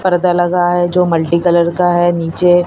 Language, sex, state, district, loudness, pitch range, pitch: Hindi, male, Maharashtra, Mumbai Suburban, -13 LUFS, 170-180 Hz, 175 Hz